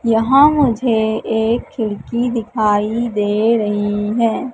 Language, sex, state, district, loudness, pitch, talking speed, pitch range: Hindi, female, Madhya Pradesh, Katni, -16 LUFS, 225 Hz, 105 wpm, 215-235 Hz